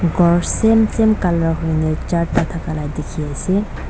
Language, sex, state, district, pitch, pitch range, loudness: Nagamese, female, Nagaland, Dimapur, 170 Hz, 160-185 Hz, -18 LUFS